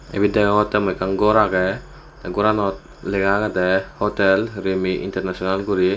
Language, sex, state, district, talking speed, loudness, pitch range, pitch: Chakma, male, Tripura, West Tripura, 150 wpm, -20 LUFS, 95-105 Hz, 95 Hz